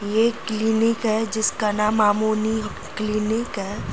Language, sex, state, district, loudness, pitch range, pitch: Hindi, female, Uttar Pradesh, Jyotiba Phule Nagar, -22 LUFS, 215-220 Hz, 220 Hz